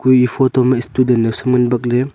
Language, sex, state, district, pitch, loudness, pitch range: Wancho, male, Arunachal Pradesh, Longding, 125 Hz, -15 LUFS, 120-130 Hz